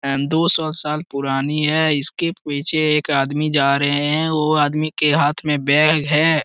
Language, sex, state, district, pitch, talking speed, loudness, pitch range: Hindi, male, Bihar, Jamui, 150 Hz, 185 wpm, -17 LUFS, 145-155 Hz